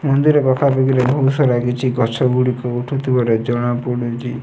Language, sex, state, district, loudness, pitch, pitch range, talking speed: Odia, male, Odisha, Nuapada, -17 LUFS, 125 Hz, 120-135 Hz, 165 wpm